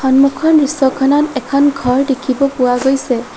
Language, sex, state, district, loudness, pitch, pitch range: Assamese, female, Assam, Sonitpur, -13 LUFS, 270 Hz, 260-280 Hz